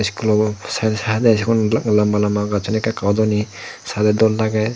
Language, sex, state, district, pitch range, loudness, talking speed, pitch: Chakma, male, Tripura, Dhalai, 105-110 Hz, -18 LUFS, 165 wpm, 110 Hz